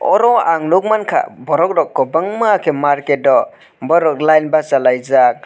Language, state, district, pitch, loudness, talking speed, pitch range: Kokborok, Tripura, West Tripura, 155 Hz, -14 LUFS, 145 wpm, 140-195 Hz